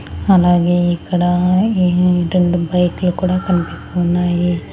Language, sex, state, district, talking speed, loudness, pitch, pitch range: Telugu, female, Andhra Pradesh, Annamaya, 90 wpm, -15 LUFS, 180 Hz, 175-180 Hz